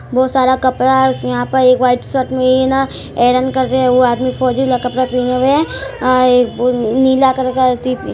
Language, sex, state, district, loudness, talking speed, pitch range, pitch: Hindi, female, Bihar, Araria, -13 LUFS, 190 wpm, 250-260 Hz, 255 Hz